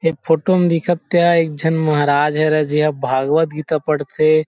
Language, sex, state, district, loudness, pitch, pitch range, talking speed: Chhattisgarhi, male, Chhattisgarh, Rajnandgaon, -16 LUFS, 155 Hz, 150-165 Hz, 185 wpm